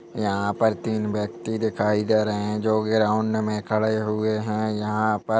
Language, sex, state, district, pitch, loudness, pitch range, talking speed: Hindi, male, Chhattisgarh, Kabirdham, 110 Hz, -24 LUFS, 105-110 Hz, 180 wpm